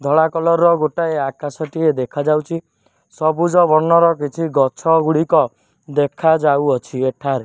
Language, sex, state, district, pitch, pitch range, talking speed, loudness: Odia, male, Odisha, Nuapada, 155 Hz, 140-165 Hz, 115 wpm, -16 LUFS